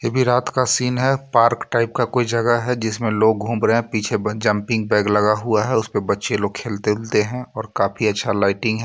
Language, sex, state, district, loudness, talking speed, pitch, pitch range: Hindi, male, Jharkhand, Ranchi, -19 LUFS, 235 wpm, 115 Hz, 105-120 Hz